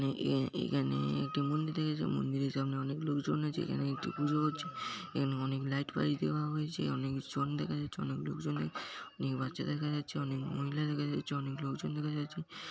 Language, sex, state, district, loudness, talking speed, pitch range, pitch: Bengali, male, West Bengal, Paschim Medinipur, -36 LUFS, 185 wpm, 135-150 Hz, 140 Hz